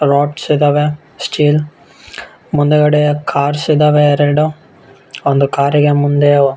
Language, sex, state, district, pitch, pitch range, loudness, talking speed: Kannada, male, Karnataka, Bellary, 145 Hz, 145-150 Hz, -13 LUFS, 110 wpm